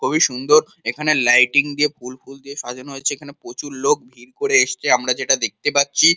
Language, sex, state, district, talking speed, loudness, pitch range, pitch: Bengali, male, West Bengal, Kolkata, 185 wpm, -18 LUFS, 125-145 Hz, 140 Hz